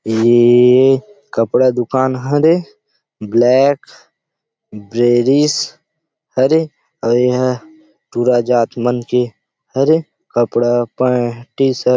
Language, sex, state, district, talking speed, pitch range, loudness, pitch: Chhattisgarhi, male, Chhattisgarh, Rajnandgaon, 95 wpm, 120-135 Hz, -14 LUFS, 125 Hz